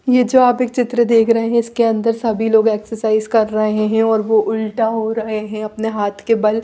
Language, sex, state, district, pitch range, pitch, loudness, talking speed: Hindi, female, Bihar, Patna, 215-230 Hz, 225 Hz, -16 LUFS, 235 wpm